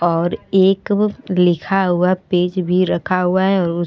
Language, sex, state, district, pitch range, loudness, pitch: Hindi, female, Bihar, Gopalganj, 175-190 Hz, -17 LUFS, 185 Hz